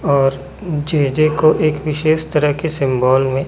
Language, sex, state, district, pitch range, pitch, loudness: Hindi, male, Chhattisgarh, Raipur, 135-155 Hz, 150 Hz, -16 LUFS